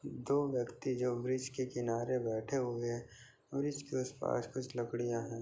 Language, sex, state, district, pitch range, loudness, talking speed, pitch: Hindi, male, Chhattisgarh, Bastar, 120-130 Hz, -37 LUFS, 165 wpm, 125 Hz